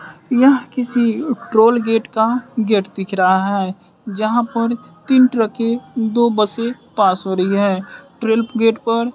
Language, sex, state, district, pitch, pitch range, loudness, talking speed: Hindi, male, Bihar, West Champaran, 230 Hz, 210-240 Hz, -17 LUFS, 145 wpm